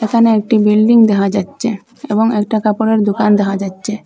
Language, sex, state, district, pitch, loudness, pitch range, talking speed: Bengali, female, Assam, Hailakandi, 215 Hz, -13 LUFS, 205-225 Hz, 160 wpm